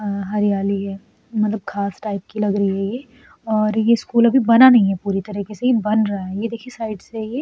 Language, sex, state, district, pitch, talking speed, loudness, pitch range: Hindi, female, Uttar Pradesh, Etah, 215 Hz, 260 wpm, -19 LUFS, 200-230 Hz